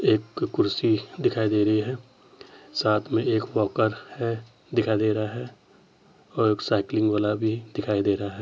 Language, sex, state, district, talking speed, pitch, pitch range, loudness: Hindi, male, Uttar Pradesh, Jyotiba Phule Nagar, 170 wpm, 110 Hz, 105-115 Hz, -25 LUFS